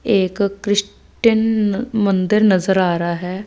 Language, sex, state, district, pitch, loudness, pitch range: Hindi, female, Punjab, Fazilka, 200 Hz, -17 LUFS, 185-215 Hz